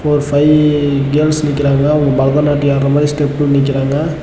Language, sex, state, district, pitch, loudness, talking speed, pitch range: Tamil, male, Tamil Nadu, Namakkal, 145 Hz, -13 LUFS, 140 wpm, 140-150 Hz